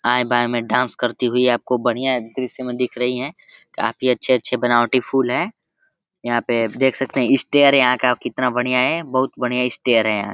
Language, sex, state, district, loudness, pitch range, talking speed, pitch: Hindi, male, Uttar Pradesh, Deoria, -19 LUFS, 120-130 Hz, 185 wpm, 125 Hz